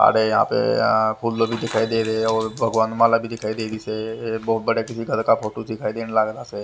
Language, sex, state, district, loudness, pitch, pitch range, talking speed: Hindi, male, Haryana, Rohtak, -21 LUFS, 110 Hz, 110-115 Hz, 250 wpm